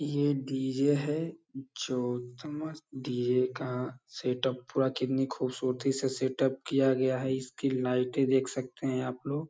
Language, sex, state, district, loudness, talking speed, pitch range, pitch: Hindi, male, Uttar Pradesh, Hamirpur, -31 LUFS, 145 wpm, 125-135 Hz, 130 Hz